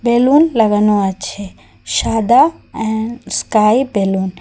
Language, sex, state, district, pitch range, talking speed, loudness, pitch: Bengali, female, Assam, Hailakandi, 205-240 Hz, 110 wpm, -14 LUFS, 220 Hz